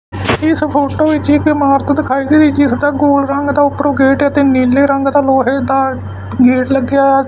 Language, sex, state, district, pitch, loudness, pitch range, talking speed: Punjabi, male, Punjab, Fazilka, 280 Hz, -12 LUFS, 270-290 Hz, 200 wpm